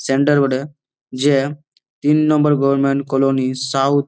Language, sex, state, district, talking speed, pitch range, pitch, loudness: Bengali, male, West Bengal, Malda, 145 wpm, 135-145 Hz, 140 Hz, -17 LUFS